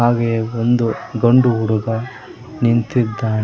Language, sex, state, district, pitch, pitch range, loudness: Kannada, male, Karnataka, Koppal, 115 Hz, 110-120 Hz, -17 LUFS